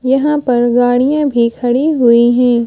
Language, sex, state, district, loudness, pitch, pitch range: Hindi, female, Madhya Pradesh, Bhopal, -12 LUFS, 245 Hz, 240-270 Hz